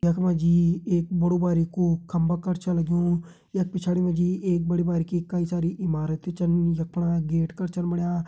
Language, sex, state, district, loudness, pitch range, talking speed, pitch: Hindi, male, Uttarakhand, Tehri Garhwal, -25 LUFS, 170-180 Hz, 195 wpm, 175 Hz